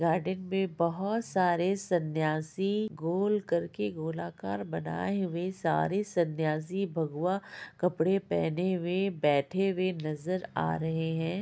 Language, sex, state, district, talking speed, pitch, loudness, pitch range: Hindi, female, Bihar, Purnia, 125 wpm, 175 Hz, -31 LUFS, 155-190 Hz